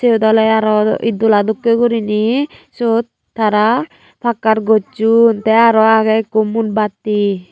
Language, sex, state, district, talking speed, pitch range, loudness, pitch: Chakma, female, Tripura, Unakoti, 130 wpm, 215-230 Hz, -14 LUFS, 220 Hz